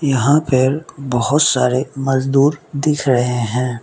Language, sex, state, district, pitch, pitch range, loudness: Hindi, male, Mizoram, Aizawl, 135 Hz, 125-145 Hz, -16 LUFS